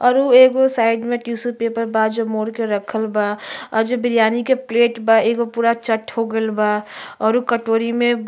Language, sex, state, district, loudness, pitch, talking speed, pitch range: Bhojpuri, female, Uttar Pradesh, Gorakhpur, -18 LUFS, 230 Hz, 210 wpm, 220-240 Hz